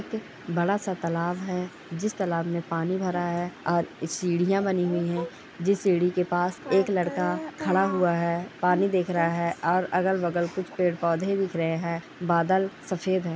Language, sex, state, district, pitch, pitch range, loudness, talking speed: Hindi, female, Chhattisgarh, Korba, 180 Hz, 170-185 Hz, -26 LUFS, 180 wpm